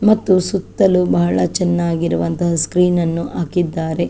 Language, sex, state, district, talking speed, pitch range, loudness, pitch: Kannada, female, Karnataka, Chamarajanagar, 115 wpm, 165-180 Hz, -17 LUFS, 175 Hz